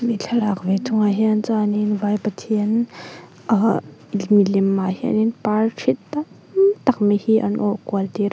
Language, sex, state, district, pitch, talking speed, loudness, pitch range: Mizo, female, Mizoram, Aizawl, 210 Hz, 150 wpm, -20 LUFS, 200-225 Hz